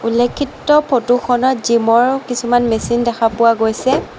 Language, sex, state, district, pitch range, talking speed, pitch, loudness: Assamese, female, Assam, Sonitpur, 230-260 Hz, 115 wpm, 240 Hz, -15 LUFS